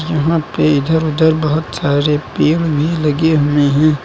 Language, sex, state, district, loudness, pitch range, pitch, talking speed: Hindi, male, Uttar Pradesh, Lucknow, -14 LUFS, 145-160 Hz, 155 Hz, 165 wpm